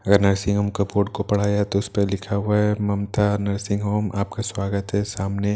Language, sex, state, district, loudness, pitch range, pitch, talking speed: Hindi, male, Bihar, Katihar, -22 LUFS, 100-105 Hz, 100 Hz, 225 wpm